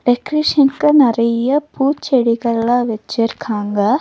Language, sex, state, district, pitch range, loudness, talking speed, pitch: Tamil, female, Tamil Nadu, Nilgiris, 230-280 Hz, -15 LUFS, 60 wpm, 245 Hz